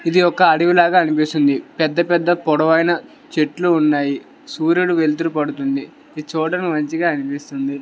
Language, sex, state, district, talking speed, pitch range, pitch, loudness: Telugu, male, Andhra Pradesh, Srikakulam, 130 wpm, 150-175 Hz, 160 Hz, -17 LUFS